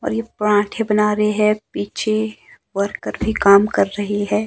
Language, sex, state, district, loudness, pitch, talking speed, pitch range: Hindi, male, Himachal Pradesh, Shimla, -18 LUFS, 210 Hz, 175 wpm, 205-215 Hz